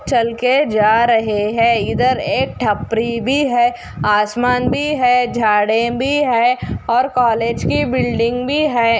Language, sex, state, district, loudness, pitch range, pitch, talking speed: Hindi, female, Goa, North and South Goa, -16 LUFS, 225-250 Hz, 235 Hz, 145 wpm